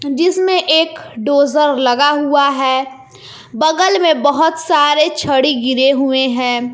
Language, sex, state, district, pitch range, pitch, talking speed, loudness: Hindi, female, Jharkhand, Palamu, 265-320 Hz, 285 Hz, 125 wpm, -13 LUFS